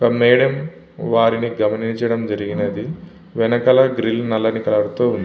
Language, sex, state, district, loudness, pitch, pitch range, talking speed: Telugu, male, Andhra Pradesh, Visakhapatnam, -18 LUFS, 115 Hz, 110-125 Hz, 115 wpm